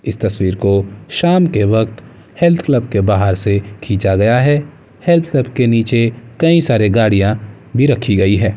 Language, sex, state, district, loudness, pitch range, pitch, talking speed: Hindi, male, Uttar Pradesh, Muzaffarnagar, -14 LUFS, 100-135 Hz, 110 Hz, 175 wpm